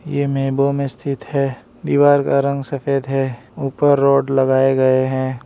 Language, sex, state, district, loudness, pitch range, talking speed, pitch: Hindi, male, Arunachal Pradesh, Lower Dibang Valley, -17 LUFS, 130-140 Hz, 165 wpm, 135 Hz